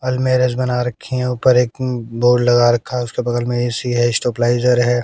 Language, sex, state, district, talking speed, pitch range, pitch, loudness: Hindi, male, Haryana, Jhajjar, 200 wpm, 120-125 Hz, 125 Hz, -17 LUFS